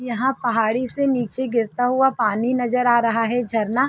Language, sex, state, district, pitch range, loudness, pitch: Hindi, female, Uttar Pradesh, Varanasi, 230-255 Hz, -20 LUFS, 245 Hz